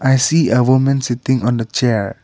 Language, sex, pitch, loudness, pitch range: English, male, 130 Hz, -15 LUFS, 120-130 Hz